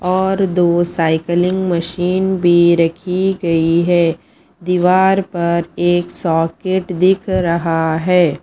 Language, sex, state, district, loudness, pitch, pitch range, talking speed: Hindi, female, Punjab, Pathankot, -15 LUFS, 175 Hz, 170-185 Hz, 105 wpm